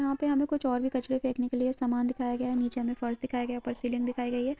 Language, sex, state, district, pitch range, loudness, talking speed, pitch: Hindi, female, Uttarakhand, Uttarkashi, 245-260 Hz, -30 LUFS, 325 wpm, 250 Hz